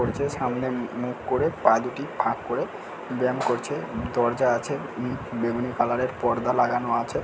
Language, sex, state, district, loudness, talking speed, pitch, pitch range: Bengali, male, West Bengal, Dakshin Dinajpur, -26 LUFS, 165 wpm, 125 Hz, 120-125 Hz